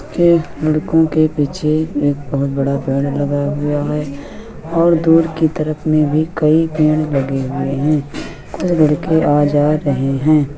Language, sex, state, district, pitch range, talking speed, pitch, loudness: Hindi, male, Uttar Pradesh, Hamirpur, 145-155 Hz, 155 wpm, 150 Hz, -16 LUFS